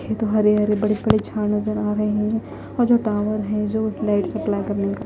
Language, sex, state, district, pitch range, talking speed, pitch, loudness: Hindi, female, Haryana, Jhajjar, 210-215 Hz, 250 wpm, 210 Hz, -21 LUFS